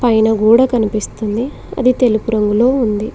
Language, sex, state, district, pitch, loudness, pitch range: Telugu, female, Telangana, Mahabubabad, 225 Hz, -14 LUFS, 215-250 Hz